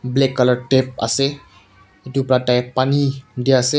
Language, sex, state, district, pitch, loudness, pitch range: Nagamese, male, Nagaland, Kohima, 130 Hz, -18 LUFS, 125-135 Hz